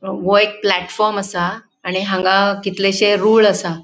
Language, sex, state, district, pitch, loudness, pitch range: Konkani, female, Goa, North and South Goa, 195 Hz, -16 LUFS, 185-205 Hz